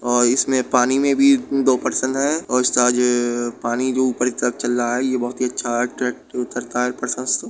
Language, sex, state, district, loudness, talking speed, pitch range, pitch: Hindi, male, Uttar Pradesh, Budaun, -19 LUFS, 190 wpm, 120-130 Hz, 125 Hz